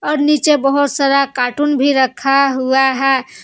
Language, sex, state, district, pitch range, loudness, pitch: Hindi, female, Jharkhand, Palamu, 265-290 Hz, -14 LUFS, 275 Hz